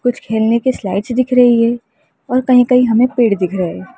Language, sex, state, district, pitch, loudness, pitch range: Hindi, female, Uttar Pradesh, Lalitpur, 240 Hz, -14 LUFS, 220-250 Hz